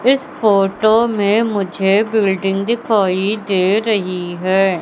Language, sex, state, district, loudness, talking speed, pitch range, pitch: Hindi, female, Madhya Pradesh, Katni, -16 LUFS, 110 wpm, 195-220 Hz, 200 Hz